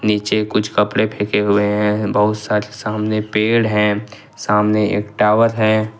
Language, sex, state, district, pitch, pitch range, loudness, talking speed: Hindi, male, Jharkhand, Ranchi, 105 Hz, 105-110 Hz, -17 LUFS, 150 wpm